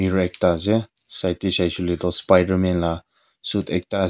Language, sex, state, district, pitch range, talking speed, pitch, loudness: Nagamese, male, Nagaland, Kohima, 90-95 Hz, 190 wpm, 90 Hz, -21 LUFS